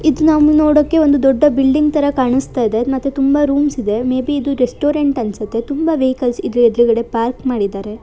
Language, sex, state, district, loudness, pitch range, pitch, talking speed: Kannada, female, Karnataka, Shimoga, -15 LUFS, 240-290 Hz, 270 Hz, 180 wpm